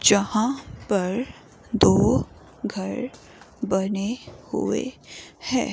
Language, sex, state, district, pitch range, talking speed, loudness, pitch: Hindi, female, Himachal Pradesh, Shimla, 200-250 Hz, 75 wpm, -24 LUFS, 215 Hz